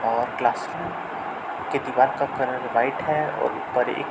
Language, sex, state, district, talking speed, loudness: Hindi, male, Uttar Pradesh, Budaun, 175 wpm, -25 LUFS